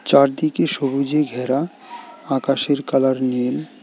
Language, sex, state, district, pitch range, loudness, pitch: Bengali, male, West Bengal, Alipurduar, 135-155 Hz, -20 LUFS, 140 Hz